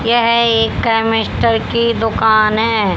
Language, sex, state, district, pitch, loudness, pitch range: Hindi, male, Haryana, Jhajjar, 225 Hz, -14 LUFS, 225-230 Hz